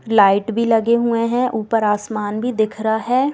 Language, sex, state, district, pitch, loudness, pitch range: Hindi, female, Bihar, East Champaran, 225 Hz, -18 LUFS, 215-235 Hz